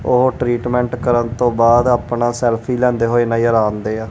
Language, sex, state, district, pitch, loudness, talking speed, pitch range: Punjabi, male, Punjab, Kapurthala, 120 Hz, -16 LUFS, 175 wpm, 115-125 Hz